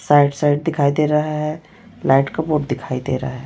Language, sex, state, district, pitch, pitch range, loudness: Hindi, female, Chhattisgarh, Raipur, 145 Hz, 135-155 Hz, -19 LUFS